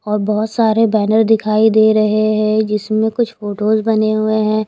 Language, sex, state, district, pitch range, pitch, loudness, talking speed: Hindi, female, Himachal Pradesh, Shimla, 215-220 Hz, 215 Hz, -14 LUFS, 180 wpm